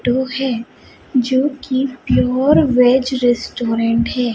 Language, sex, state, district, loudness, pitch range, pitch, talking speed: Hindi, female, Chhattisgarh, Raipur, -16 LUFS, 240-265 Hz, 255 Hz, 110 wpm